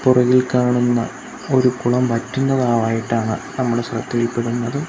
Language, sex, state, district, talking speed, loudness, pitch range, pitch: Malayalam, male, Kerala, Kasaragod, 85 wpm, -19 LUFS, 115-125 Hz, 120 Hz